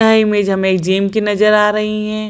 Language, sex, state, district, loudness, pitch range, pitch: Hindi, female, Bihar, Lakhisarai, -14 LUFS, 195-215 Hz, 210 Hz